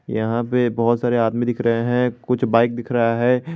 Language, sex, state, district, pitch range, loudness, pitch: Hindi, male, Jharkhand, Garhwa, 115-125 Hz, -19 LUFS, 120 Hz